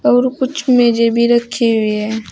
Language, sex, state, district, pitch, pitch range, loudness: Hindi, female, Uttar Pradesh, Saharanpur, 235 Hz, 220-250 Hz, -14 LUFS